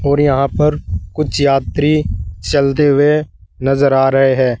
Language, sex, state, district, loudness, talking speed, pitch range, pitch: Hindi, male, Uttar Pradesh, Saharanpur, -14 LUFS, 145 wpm, 130-145 Hz, 135 Hz